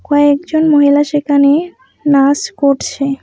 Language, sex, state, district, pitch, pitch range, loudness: Bengali, female, West Bengal, Alipurduar, 285 Hz, 280-295 Hz, -12 LUFS